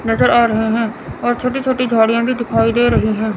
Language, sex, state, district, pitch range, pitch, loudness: Hindi, female, Chandigarh, Chandigarh, 225-240 Hz, 230 Hz, -15 LUFS